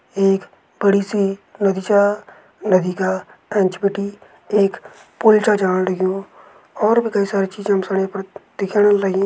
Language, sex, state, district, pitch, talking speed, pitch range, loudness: Garhwali, male, Uttarakhand, Uttarkashi, 195 Hz, 160 wpm, 190-205 Hz, -18 LUFS